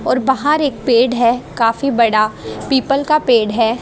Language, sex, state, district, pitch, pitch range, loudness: Hindi, female, Haryana, Jhajjar, 245 Hz, 230-275 Hz, -15 LUFS